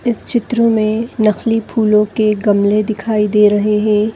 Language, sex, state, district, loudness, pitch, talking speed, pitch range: Hindi, female, Goa, North and South Goa, -14 LUFS, 215 Hz, 175 wpm, 210-225 Hz